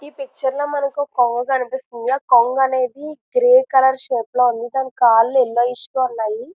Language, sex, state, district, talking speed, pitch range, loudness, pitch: Telugu, female, Andhra Pradesh, Visakhapatnam, 165 wpm, 245-275 Hz, -18 LUFS, 260 Hz